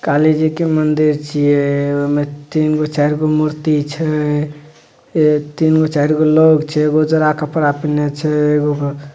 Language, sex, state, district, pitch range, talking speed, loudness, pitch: Maithili, male, Bihar, Madhepura, 145-155 Hz, 125 wpm, -15 LUFS, 150 Hz